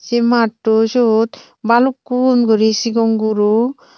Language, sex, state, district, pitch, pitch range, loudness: Chakma, female, Tripura, Unakoti, 230 Hz, 220-245 Hz, -15 LUFS